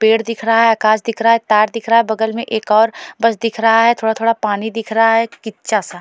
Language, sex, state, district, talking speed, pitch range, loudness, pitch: Hindi, female, Goa, North and South Goa, 290 wpm, 220-230 Hz, -15 LUFS, 225 Hz